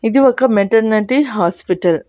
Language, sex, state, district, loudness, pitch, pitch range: Telugu, female, Andhra Pradesh, Annamaya, -14 LUFS, 220 Hz, 185-255 Hz